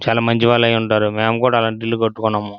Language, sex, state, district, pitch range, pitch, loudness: Telugu, male, Andhra Pradesh, Srikakulam, 110-115 Hz, 115 Hz, -16 LUFS